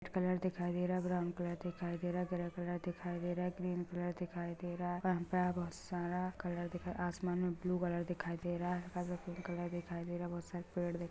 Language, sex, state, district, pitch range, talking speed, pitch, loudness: Hindi, female, Jharkhand, Sahebganj, 175-180 Hz, 260 wpm, 175 Hz, -40 LUFS